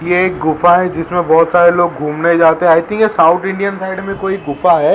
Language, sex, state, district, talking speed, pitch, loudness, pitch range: Hindi, male, Maharashtra, Mumbai Suburban, 220 wpm, 175 Hz, -12 LUFS, 165-190 Hz